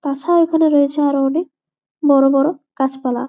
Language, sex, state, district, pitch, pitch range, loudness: Bengali, female, West Bengal, Malda, 285 Hz, 275-315 Hz, -16 LUFS